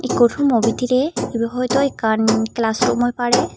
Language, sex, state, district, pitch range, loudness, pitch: Chakma, female, Tripura, Dhalai, 225-250 Hz, -18 LUFS, 240 Hz